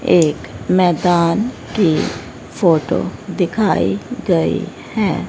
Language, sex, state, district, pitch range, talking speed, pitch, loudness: Hindi, female, Haryana, Rohtak, 165-185 Hz, 80 wpm, 175 Hz, -17 LUFS